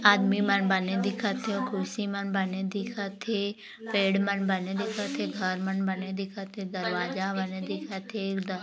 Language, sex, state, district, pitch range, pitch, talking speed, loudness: Hindi, female, Chhattisgarh, Korba, 190-205 Hz, 195 Hz, 160 wpm, -29 LUFS